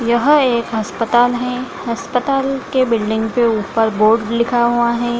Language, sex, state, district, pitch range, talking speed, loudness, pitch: Hindi, female, Bihar, Gaya, 225-245 Hz, 150 wpm, -16 LUFS, 235 Hz